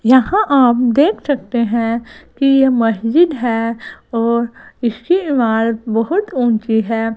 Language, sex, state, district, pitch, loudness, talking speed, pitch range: Hindi, female, Gujarat, Gandhinagar, 235 Hz, -15 LUFS, 125 wpm, 225-270 Hz